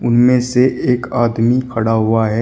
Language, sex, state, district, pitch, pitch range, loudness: Hindi, male, Uttar Pradesh, Shamli, 120 Hz, 115-125 Hz, -15 LUFS